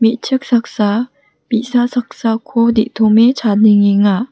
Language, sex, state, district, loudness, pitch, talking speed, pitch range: Garo, female, Meghalaya, West Garo Hills, -13 LUFS, 230 Hz, 85 wpm, 215-245 Hz